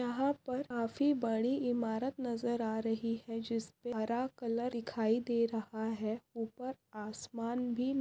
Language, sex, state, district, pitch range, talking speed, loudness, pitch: Hindi, female, Maharashtra, Aurangabad, 225-250 Hz, 150 wpm, -36 LUFS, 235 Hz